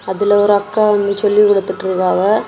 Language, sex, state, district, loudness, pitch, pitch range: Tamil, female, Tamil Nadu, Kanyakumari, -14 LUFS, 205 Hz, 190-210 Hz